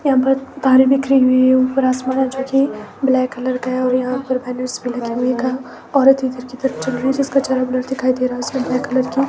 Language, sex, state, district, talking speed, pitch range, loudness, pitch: Hindi, female, Himachal Pradesh, Shimla, 260 wpm, 255-265 Hz, -17 LUFS, 255 Hz